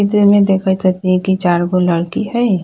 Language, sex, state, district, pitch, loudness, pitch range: Bajjika, female, Bihar, Vaishali, 190 Hz, -14 LUFS, 180-200 Hz